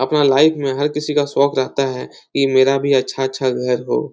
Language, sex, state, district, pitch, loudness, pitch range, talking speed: Hindi, male, Uttar Pradesh, Etah, 135 Hz, -17 LUFS, 130-145 Hz, 215 wpm